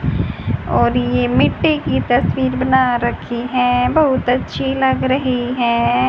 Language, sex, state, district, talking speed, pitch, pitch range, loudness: Hindi, female, Haryana, Charkhi Dadri, 130 wpm, 250 Hz, 235-260 Hz, -16 LUFS